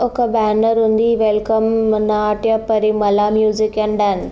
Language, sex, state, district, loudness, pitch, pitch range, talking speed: Telugu, female, Andhra Pradesh, Srikakulam, -16 LUFS, 215 Hz, 215-225 Hz, 125 wpm